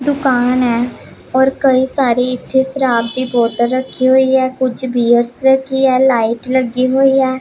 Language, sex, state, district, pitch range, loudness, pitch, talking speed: Punjabi, female, Punjab, Pathankot, 245-265 Hz, -14 LUFS, 255 Hz, 160 wpm